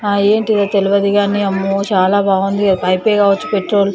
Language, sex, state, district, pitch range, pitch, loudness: Telugu, female, Andhra Pradesh, Chittoor, 195-205 Hz, 200 Hz, -14 LUFS